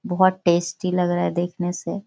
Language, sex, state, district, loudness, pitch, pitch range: Hindi, female, Bihar, Jahanabad, -22 LUFS, 180 Hz, 175-185 Hz